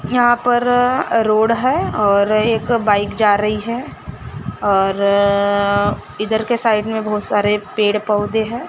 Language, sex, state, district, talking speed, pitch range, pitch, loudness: Hindi, female, Maharashtra, Gondia, 150 wpm, 205-230 Hz, 215 Hz, -16 LUFS